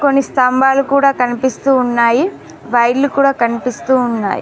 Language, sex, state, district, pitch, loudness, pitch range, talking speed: Telugu, female, Telangana, Mahabubabad, 255 Hz, -14 LUFS, 240-275 Hz, 120 wpm